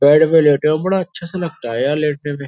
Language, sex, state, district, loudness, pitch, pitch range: Hindi, male, Uttar Pradesh, Jyotiba Phule Nagar, -16 LUFS, 150 Hz, 145-170 Hz